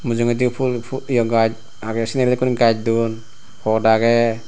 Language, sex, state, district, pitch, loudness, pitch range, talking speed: Chakma, male, Tripura, Unakoti, 115 Hz, -19 LUFS, 110-125 Hz, 145 wpm